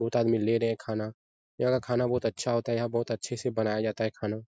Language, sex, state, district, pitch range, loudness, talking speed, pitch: Hindi, male, Bihar, Jahanabad, 110-120 Hz, -29 LUFS, 275 wpm, 115 Hz